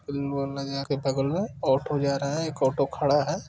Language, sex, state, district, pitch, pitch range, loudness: Hindi, male, Uttar Pradesh, Budaun, 140 Hz, 140-145 Hz, -27 LUFS